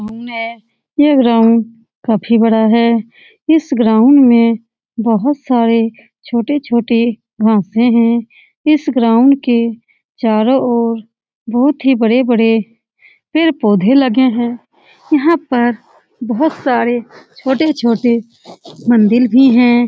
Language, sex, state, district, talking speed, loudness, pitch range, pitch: Hindi, female, Bihar, Saran, 105 wpm, -13 LUFS, 230-265 Hz, 235 Hz